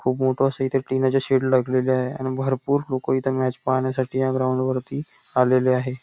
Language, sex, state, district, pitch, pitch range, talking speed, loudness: Marathi, male, Maharashtra, Nagpur, 130 Hz, 130-135 Hz, 180 wpm, -22 LUFS